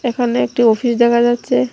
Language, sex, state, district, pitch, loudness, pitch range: Bengali, female, Tripura, Dhalai, 240 Hz, -15 LUFS, 235-245 Hz